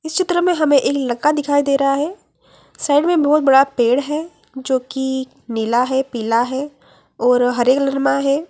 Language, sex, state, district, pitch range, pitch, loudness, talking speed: Hindi, female, Bihar, Jamui, 255-295 Hz, 275 Hz, -17 LUFS, 185 wpm